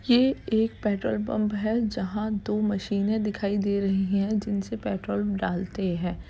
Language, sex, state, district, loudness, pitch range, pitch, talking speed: Hindi, female, Uttar Pradesh, Jalaun, -27 LUFS, 190-215 Hz, 205 Hz, 150 wpm